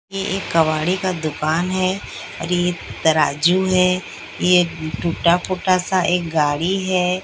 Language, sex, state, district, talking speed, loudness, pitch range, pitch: Hindi, female, Odisha, Sambalpur, 140 wpm, -19 LUFS, 165-185 Hz, 180 Hz